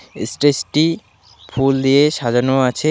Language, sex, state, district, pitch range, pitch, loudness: Bengali, male, West Bengal, Alipurduar, 120-145 Hz, 135 Hz, -16 LUFS